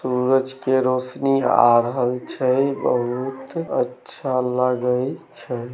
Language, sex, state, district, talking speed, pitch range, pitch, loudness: Maithili, male, Bihar, Samastipur, 105 wpm, 125-135 Hz, 130 Hz, -21 LUFS